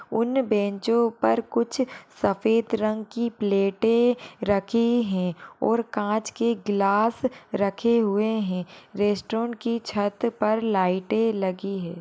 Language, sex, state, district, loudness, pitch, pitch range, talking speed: Hindi, female, Bihar, Purnia, -24 LUFS, 220 Hz, 200-235 Hz, 120 wpm